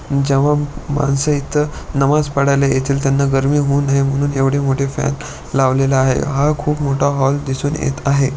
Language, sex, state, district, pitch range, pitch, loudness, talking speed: Marathi, male, Maharashtra, Pune, 135-145 Hz, 140 Hz, -16 LUFS, 165 wpm